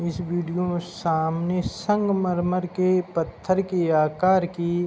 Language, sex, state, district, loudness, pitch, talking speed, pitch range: Hindi, male, Uttar Pradesh, Hamirpur, -24 LUFS, 175 Hz, 135 wpm, 170-185 Hz